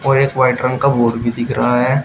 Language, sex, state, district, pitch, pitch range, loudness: Hindi, male, Uttar Pradesh, Shamli, 125 Hz, 120-135 Hz, -15 LUFS